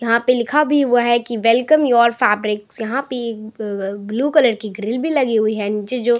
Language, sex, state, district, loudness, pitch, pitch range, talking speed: Hindi, female, Bihar, Samastipur, -17 LUFS, 235 Hz, 215-250 Hz, 240 wpm